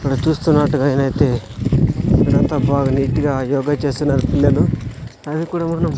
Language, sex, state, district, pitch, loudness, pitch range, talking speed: Telugu, male, Andhra Pradesh, Sri Satya Sai, 140 Hz, -17 LUFS, 135-150 Hz, 120 wpm